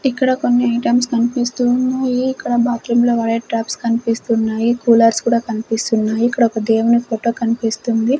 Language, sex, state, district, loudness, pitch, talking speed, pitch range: Telugu, female, Andhra Pradesh, Sri Satya Sai, -16 LUFS, 235 Hz, 160 wpm, 230-245 Hz